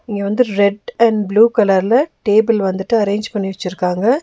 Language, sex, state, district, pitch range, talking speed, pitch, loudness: Tamil, female, Tamil Nadu, Nilgiris, 200-230 Hz, 155 wpm, 210 Hz, -15 LUFS